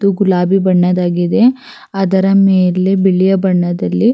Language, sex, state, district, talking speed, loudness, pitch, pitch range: Kannada, female, Karnataka, Raichur, 100 wpm, -12 LUFS, 190 Hz, 180-195 Hz